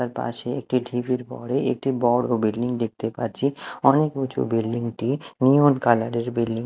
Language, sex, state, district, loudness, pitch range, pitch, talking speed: Bengali, male, Odisha, Malkangiri, -23 LUFS, 115-135 Hz, 125 Hz, 170 wpm